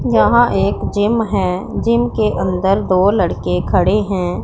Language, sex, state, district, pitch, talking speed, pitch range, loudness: Hindi, female, Punjab, Pathankot, 200 Hz, 150 wpm, 185-215 Hz, -15 LUFS